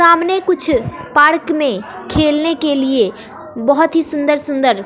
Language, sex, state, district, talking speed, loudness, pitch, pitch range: Hindi, female, Bihar, West Champaran, 135 wpm, -14 LUFS, 300 Hz, 285-325 Hz